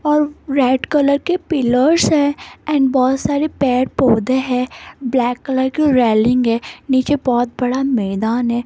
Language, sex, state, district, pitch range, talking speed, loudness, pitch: Hindi, female, Rajasthan, Jaipur, 245-285 Hz, 150 wpm, -16 LUFS, 260 Hz